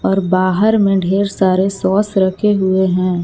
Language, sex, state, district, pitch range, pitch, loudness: Hindi, female, Jharkhand, Palamu, 185-200 Hz, 190 Hz, -14 LUFS